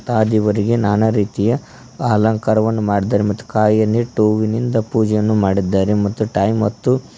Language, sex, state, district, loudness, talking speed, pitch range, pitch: Kannada, male, Karnataka, Koppal, -17 LUFS, 135 wpm, 105-110 Hz, 110 Hz